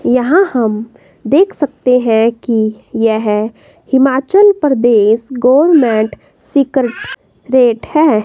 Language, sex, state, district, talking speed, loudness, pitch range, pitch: Hindi, female, Himachal Pradesh, Shimla, 95 wpm, -12 LUFS, 225-280 Hz, 250 Hz